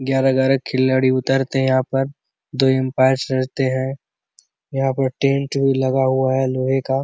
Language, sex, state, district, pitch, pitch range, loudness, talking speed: Hindi, male, Chhattisgarh, Bastar, 135 Hz, 130-135 Hz, -19 LUFS, 185 wpm